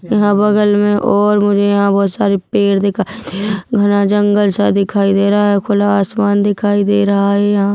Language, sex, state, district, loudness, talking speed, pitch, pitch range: Hindi, female, Chhattisgarh, Bilaspur, -13 LUFS, 210 wpm, 205 Hz, 200-205 Hz